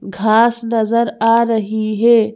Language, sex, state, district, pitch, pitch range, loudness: Hindi, female, Madhya Pradesh, Bhopal, 225 Hz, 215-230 Hz, -15 LUFS